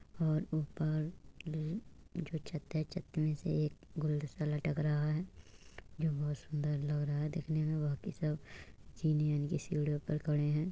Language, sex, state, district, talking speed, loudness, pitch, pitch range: Hindi, female, Uttar Pradesh, Budaun, 175 wpm, -37 LUFS, 155 Hz, 150-155 Hz